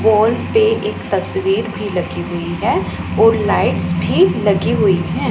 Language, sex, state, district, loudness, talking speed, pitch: Hindi, female, Punjab, Pathankot, -16 LUFS, 160 wpm, 195 Hz